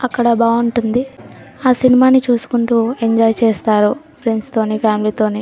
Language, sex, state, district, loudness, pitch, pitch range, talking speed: Telugu, female, Telangana, Nalgonda, -15 LUFS, 235 Hz, 220-250 Hz, 155 wpm